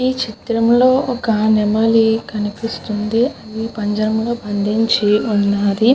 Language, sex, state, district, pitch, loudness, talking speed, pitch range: Telugu, female, Andhra Pradesh, Guntur, 220 Hz, -17 LUFS, 100 wpm, 210-235 Hz